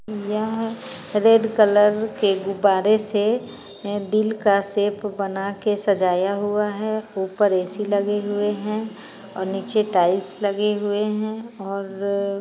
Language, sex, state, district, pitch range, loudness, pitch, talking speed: Hindi, female, Bihar, Muzaffarpur, 200-215 Hz, -21 LUFS, 205 Hz, 130 wpm